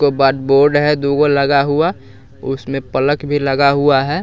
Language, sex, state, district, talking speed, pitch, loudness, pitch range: Hindi, male, Bihar, West Champaran, 185 wpm, 140 Hz, -14 LUFS, 135-145 Hz